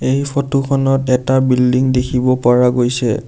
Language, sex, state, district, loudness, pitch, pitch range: Assamese, male, Assam, Sonitpur, -14 LUFS, 130 Hz, 125-135 Hz